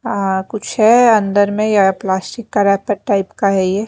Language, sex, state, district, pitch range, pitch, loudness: Hindi, female, Maharashtra, Mumbai Suburban, 195-215 Hz, 200 Hz, -15 LUFS